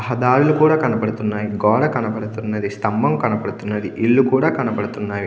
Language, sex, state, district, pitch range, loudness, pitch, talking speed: Telugu, male, Andhra Pradesh, Krishna, 105-125 Hz, -18 LUFS, 110 Hz, 115 wpm